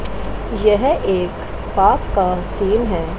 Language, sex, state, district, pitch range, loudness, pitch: Hindi, female, Chandigarh, Chandigarh, 180-215 Hz, -18 LUFS, 195 Hz